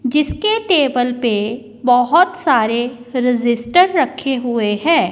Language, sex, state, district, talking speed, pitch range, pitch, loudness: Hindi, female, Punjab, Kapurthala, 105 wpm, 235-330 Hz, 250 Hz, -16 LUFS